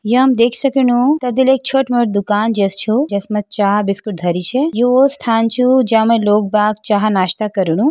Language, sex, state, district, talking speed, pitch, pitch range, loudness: Hindi, female, Uttarakhand, Uttarkashi, 205 wpm, 225 Hz, 205-255 Hz, -14 LUFS